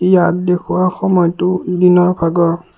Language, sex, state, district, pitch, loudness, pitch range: Assamese, male, Assam, Kamrup Metropolitan, 180 Hz, -14 LUFS, 175-180 Hz